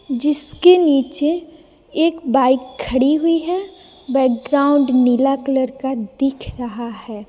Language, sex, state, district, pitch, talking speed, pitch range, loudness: Hindi, female, Bihar, Patna, 275 Hz, 105 wpm, 255-320 Hz, -17 LUFS